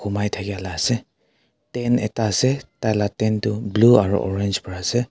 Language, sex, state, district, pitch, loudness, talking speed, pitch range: Nagamese, male, Nagaland, Kohima, 105 Hz, -21 LUFS, 165 wpm, 100-120 Hz